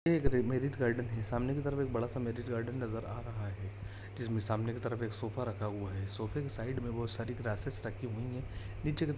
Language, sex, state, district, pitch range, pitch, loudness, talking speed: Hindi, male, Jharkhand, Jamtara, 110-125 Hz, 115 Hz, -37 LUFS, 250 wpm